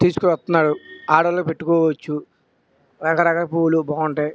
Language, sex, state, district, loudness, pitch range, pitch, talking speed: Telugu, male, Andhra Pradesh, Krishna, -19 LUFS, 155-170 Hz, 160 Hz, 85 wpm